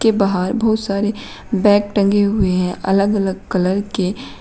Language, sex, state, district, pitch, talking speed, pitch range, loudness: Hindi, female, Uttar Pradesh, Shamli, 200 Hz, 150 wpm, 190-210 Hz, -17 LUFS